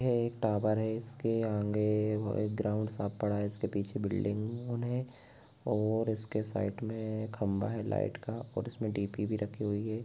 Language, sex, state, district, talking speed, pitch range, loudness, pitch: Hindi, male, Bihar, Gopalganj, 210 wpm, 105-115 Hz, -34 LUFS, 110 Hz